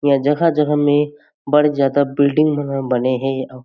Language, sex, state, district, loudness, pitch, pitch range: Chhattisgarhi, male, Chhattisgarh, Jashpur, -17 LUFS, 145 Hz, 135-150 Hz